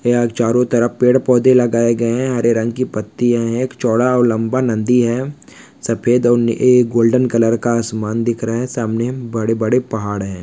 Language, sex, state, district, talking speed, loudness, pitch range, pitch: Hindi, male, Maharashtra, Pune, 185 wpm, -16 LUFS, 115-125 Hz, 120 Hz